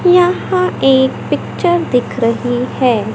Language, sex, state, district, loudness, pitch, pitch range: Hindi, male, Madhya Pradesh, Katni, -14 LUFS, 265 Hz, 245-355 Hz